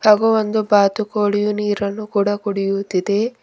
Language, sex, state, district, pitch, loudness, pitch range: Kannada, female, Karnataka, Bidar, 205 Hz, -18 LUFS, 200-215 Hz